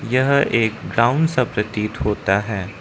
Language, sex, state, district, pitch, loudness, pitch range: Hindi, male, Arunachal Pradesh, Lower Dibang Valley, 110 Hz, -19 LUFS, 105-125 Hz